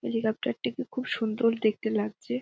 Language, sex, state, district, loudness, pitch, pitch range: Bengali, female, West Bengal, Dakshin Dinajpur, -29 LUFS, 220 Hz, 215-230 Hz